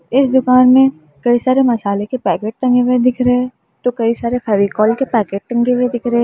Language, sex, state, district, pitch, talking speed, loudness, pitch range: Hindi, female, Uttar Pradesh, Lalitpur, 245 Hz, 210 wpm, -14 LUFS, 220-250 Hz